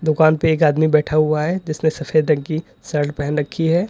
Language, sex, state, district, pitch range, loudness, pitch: Hindi, male, Uttar Pradesh, Lalitpur, 150-160 Hz, -18 LUFS, 155 Hz